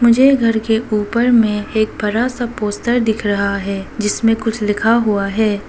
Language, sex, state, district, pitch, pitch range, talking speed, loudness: Hindi, female, Arunachal Pradesh, Lower Dibang Valley, 220 Hz, 210-235 Hz, 180 wpm, -16 LUFS